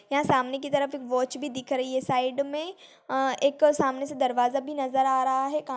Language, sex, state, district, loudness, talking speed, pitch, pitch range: Hindi, female, Chhattisgarh, Kabirdham, -26 LUFS, 230 wpm, 270 Hz, 260-285 Hz